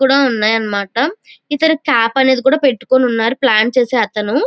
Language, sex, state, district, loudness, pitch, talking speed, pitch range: Telugu, female, Andhra Pradesh, Chittoor, -14 LUFS, 255 Hz, 145 wpm, 225-275 Hz